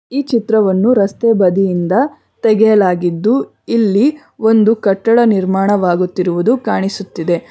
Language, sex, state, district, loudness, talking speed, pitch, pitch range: Kannada, female, Karnataka, Bangalore, -13 LUFS, 80 wpm, 205 Hz, 190-230 Hz